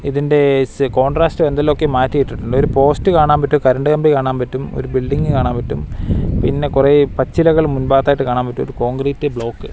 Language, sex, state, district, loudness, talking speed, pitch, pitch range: Malayalam, male, Kerala, Wayanad, -15 LUFS, 160 wpm, 135 Hz, 130-145 Hz